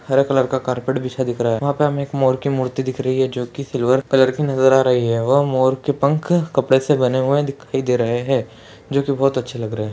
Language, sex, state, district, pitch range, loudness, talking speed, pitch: Hindi, male, Uttarakhand, Tehri Garhwal, 125-140 Hz, -18 LUFS, 260 wpm, 130 Hz